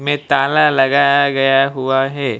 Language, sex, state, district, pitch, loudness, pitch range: Hindi, male, Odisha, Malkangiri, 140 Hz, -14 LUFS, 135-140 Hz